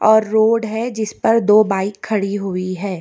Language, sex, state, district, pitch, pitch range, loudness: Hindi, female, Karnataka, Bangalore, 215 Hz, 195-220 Hz, -17 LUFS